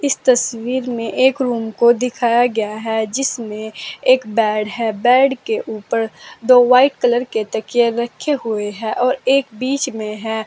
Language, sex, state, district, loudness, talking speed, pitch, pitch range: Hindi, female, Uttar Pradesh, Saharanpur, -17 LUFS, 165 wpm, 240 Hz, 220-255 Hz